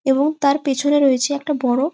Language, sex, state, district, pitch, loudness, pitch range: Bengali, female, West Bengal, Jalpaiguri, 280 Hz, -18 LUFS, 270-290 Hz